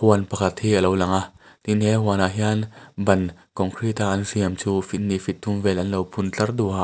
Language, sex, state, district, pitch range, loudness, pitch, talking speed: Mizo, male, Mizoram, Aizawl, 95-105 Hz, -22 LUFS, 100 Hz, 230 wpm